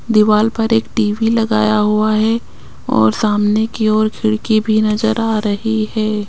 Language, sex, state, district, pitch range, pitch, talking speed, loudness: Hindi, female, Rajasthan, Jaipur, 215-225 Hz, 215 Hz, 160 wpm, -15 LUFS